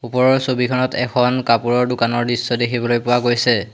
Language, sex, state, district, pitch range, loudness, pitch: Assamese, male, Assam, Hailakandi, 120-125 Hz, -17 LUFS, 120 Hz